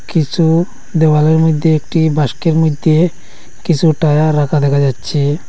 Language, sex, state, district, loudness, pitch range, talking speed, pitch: Bengali, male, Assam, Hailakandi, -13 LUFS, 150-165 Hz, 120 wpm, 155 Hz